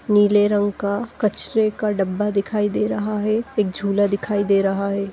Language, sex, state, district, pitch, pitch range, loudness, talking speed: Hindi, female, Chhattisgarh, Bastar, 205 Hz, 200-210 Hz, -20 LUFS, 175 wpm